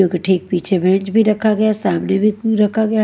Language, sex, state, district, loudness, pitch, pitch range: Hindi, female, Haryana, Charkhi Dadri, -16 LUFS, 210 Hz, 185-215 Hz